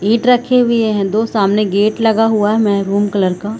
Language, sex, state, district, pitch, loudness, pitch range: Hindi, female, Chhattisgarh, Bilaspur, 215 Hz, -14 LUFS, 200-225 Hz